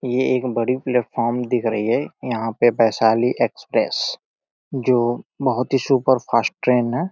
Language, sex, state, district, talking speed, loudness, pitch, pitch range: Hindi, male, Uttar Pradesh, Deoria, 145 wpm, -20 LUFS, 125 Hz, 115-130 Hz